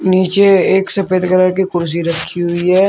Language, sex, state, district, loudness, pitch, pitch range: Hindi, male, Uttar Pradesh, Shamli, -13 LUFS, 185 Hz, 175-190 Hz